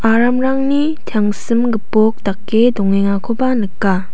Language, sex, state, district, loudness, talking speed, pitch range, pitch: Garo, female, Meghalaya, South Garo Hills, -15 LUFS, 85 wpm, 200-245 Hz, 225 Hz